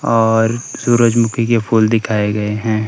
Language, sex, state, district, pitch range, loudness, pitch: Hindi, male, Himachal Pradesh, Shimla, 110-115 Hz, -15 LUFS, 115 Hz